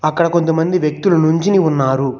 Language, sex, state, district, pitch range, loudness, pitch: Telugu, male, Telangana, Hyderabad, 150-170 Hz, -15 LUFS, 160 Hz